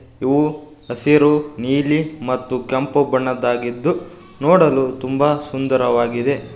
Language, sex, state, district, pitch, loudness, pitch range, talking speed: Kannada, male, Karnataka, Koppal, 135 Hz, -18 LUFS, 130-150 Hz, 80 wpm